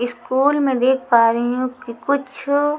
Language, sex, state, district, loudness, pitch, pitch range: Hindi, female, Chhattisgarh, Raipur, -18 LUFS, 260 Hz, 245-280 Hz